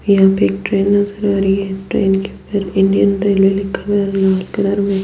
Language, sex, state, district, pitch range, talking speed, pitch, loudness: Hindi, female, Delhi, New Delhi, 195-200 Hz, 240 wpm, 195 Hz, -15 LUFS